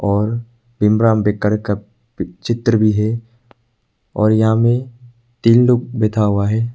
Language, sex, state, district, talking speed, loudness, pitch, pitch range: Hindi, male, Arunachal Pradesh, Papum Pare, 135 wpm, -16 LUFS, 115 Hz, 105-120 Hz